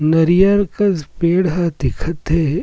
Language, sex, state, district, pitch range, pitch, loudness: Surgujia, male, Chhattisgarh, Sarguja, 160-185 Hz, 170 Hz, -16 LUFS